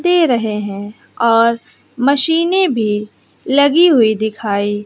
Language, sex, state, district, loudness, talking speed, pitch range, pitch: Hindi, female, Bihar, West Champaran, -14 LUFS, 125 wpm, 210-290 Hz, 235 Hz